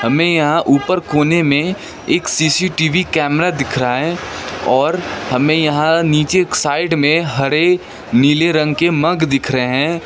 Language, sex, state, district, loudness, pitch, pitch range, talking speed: Hindi, male, West Bengal, Darjeeling, -15 LUFS, 155 Hz, 145-170 Hz, 155 wpm